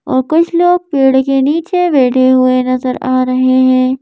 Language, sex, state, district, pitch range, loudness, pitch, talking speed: Hindi, female, Madhya Pradesh, Bhopal, 255-310 Hz, -11 LUFS, 260 Hz, 180 wpm